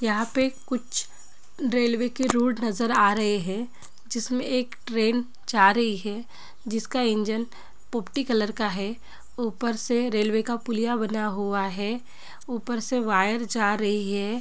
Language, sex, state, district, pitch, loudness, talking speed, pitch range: Hindi, female, Chhattisgarh, Bilaspur, 230 Hz, -26 LUFS, 150 wpm, 210-240 Hz